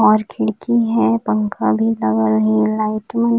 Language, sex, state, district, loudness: Chhattisgarhi, female, Chhattisgarh, Raigarh, -17 LUFS